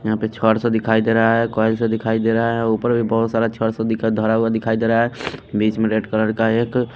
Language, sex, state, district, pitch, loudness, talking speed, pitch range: Hindi, male, Punjab, Pathankot, 110 Hz, -18 LUFS, 285 wpm, 110-115 Hz